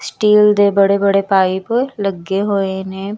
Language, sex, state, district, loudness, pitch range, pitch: Punjabi, female, Punjab, Kapurthala, -15 LUFS, 190-205 Hz, 200 Hz